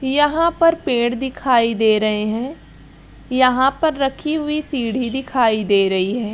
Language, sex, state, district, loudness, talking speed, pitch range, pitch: Hindi, female, Bihar, Araria, -18 LUFS, 160 wpm, 225-290 Hz, 255 Hz